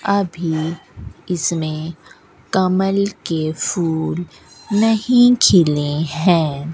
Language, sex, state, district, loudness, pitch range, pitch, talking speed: Hindi, female, Rajasthan, Bikaner, -17 LUFS, 160-195 Hz, 170 Hz, 70 wpm